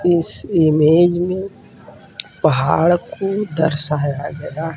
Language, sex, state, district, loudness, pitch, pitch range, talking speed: Hindi, male, Uttar Pradesh, Varanasi, -17 LUFS, 165 Hz, 155-175 Hz, 100 wpm